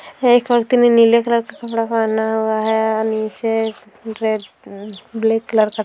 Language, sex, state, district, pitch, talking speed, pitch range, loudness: Hindi, female, Bihar, Darbhanga, 220 Hz, 175 wpm, 220-230 Hz, -17 LUFS